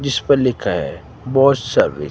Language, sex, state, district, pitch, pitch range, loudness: Hindi, male, Himachal Pradesh, Shimla, 130 Hz, 115-140 Hz, -17 LUFS